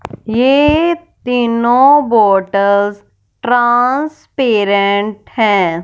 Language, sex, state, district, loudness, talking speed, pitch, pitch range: Hindi, female, Punjab, Fazilka, -12 LUFS, 50 wpm, 230 Hz, 200-260 Hz